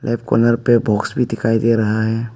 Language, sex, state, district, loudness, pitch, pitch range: Hindi, male, Arunachal Pradesh, Papum Pare, -17 LUFS, 115 Hz, 110-120 Hz